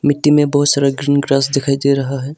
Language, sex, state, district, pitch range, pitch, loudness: Hindi, male, Arunachal Pradesh, Longding, 135-145 Hz, 140 Hz, -14 LUFS